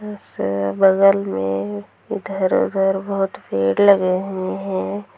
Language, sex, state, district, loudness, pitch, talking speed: Hindi, female, Bihar, Sitamarhi, -19 LUFS, 185 Hz, 105 wpm